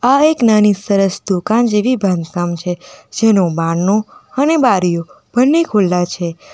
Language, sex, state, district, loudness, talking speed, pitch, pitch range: Gujarati, female, Gujarat, Valsad, -14 LUFS, 140 wpm, 200 Hz, 175-240 Hz